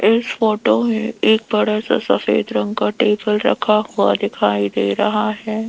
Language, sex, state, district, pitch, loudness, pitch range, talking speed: Hindi, female, Rajasthan, Jaipur, 215 Hz, -17 LUFS, 210-220 Hz, 170 wpm